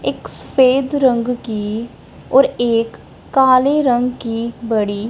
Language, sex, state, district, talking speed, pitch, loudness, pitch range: Hindi, female, Punjab, Kapurthala, 115 wpm, 240 Hz, -16 LUFS, 230-260 Hz